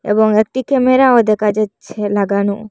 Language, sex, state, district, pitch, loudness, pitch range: Bengali, female, Assam, Hailakandi, 215 Hz, -14 LUFS, 205-245 Hz